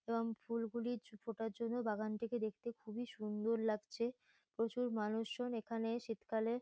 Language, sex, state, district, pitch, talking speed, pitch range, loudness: Bengali, female, West Bengal, Kolkata, 230 Hz, 125 wpm, 220-235 Hz, -42 LUFS